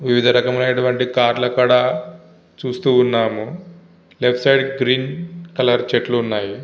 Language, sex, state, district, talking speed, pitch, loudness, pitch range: Telugu, male, Andhra Pradesh, Visakhapatnam, 110 wpm, 125 Hz, -17 LUFS, 125-135 Hz